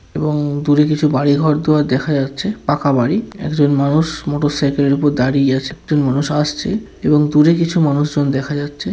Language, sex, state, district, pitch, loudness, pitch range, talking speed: Bengali, male, West Bengal, Paschim Medinipur, 145 Hz, -16 LUFS, 140-150 Hz, 180 wpm